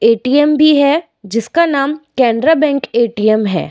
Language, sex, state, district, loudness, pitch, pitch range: Hindi, female, Uttar Pradesh, Etah, -13 LUFS, 275 Hz, 230-300 Hz